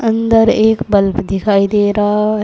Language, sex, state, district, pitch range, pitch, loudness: Hindi, female, Uttar Pradesh, Saharanpur, 205-220 Hz, 210 Hz, -13 LUFS